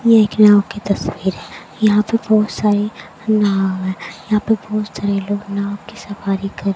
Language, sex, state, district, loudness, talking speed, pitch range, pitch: Hindi, female, Haryana, Jhajjar, -17 LUFS, 195 wpm, 195-215 Hz, 205 Hz